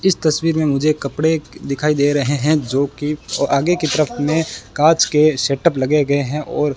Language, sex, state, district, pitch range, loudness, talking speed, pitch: Hindi, male, Rajasthan, Bikaner, 140-155 Hz, -17 LUFS, 195 wpm, 150 Hz